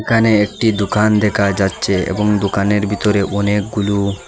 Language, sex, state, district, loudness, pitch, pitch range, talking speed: Bengali, male, Assam, Hailakandi, -16 LUFS, 105 Hz, 100-105 Hz, 125 wpm